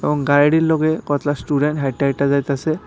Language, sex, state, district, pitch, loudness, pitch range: Bengali, male, Tripura, West Tripura, 145 Hz, -18 LUFS, 140-155 Hz